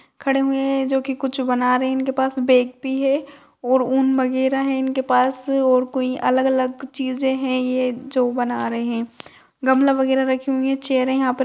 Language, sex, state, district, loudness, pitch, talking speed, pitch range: Kumaoni, female, Uttarakhand, Uttarkashi, -20 LUFS, 265 Hz, 210 wpm, 255-270 Hz